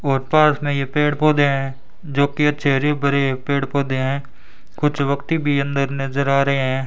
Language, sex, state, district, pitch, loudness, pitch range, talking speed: Hindi, male, Rajasthan, Bikaner, 140 Hz, -19 LUFS, 135-145 Hz, 200 wpm